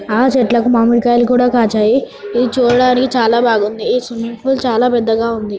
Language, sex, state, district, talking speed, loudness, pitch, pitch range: Telugu, female, Telangana, Nalgonda, 160 wpm, -13 LUFS, 240 Hz, 230-250 Hz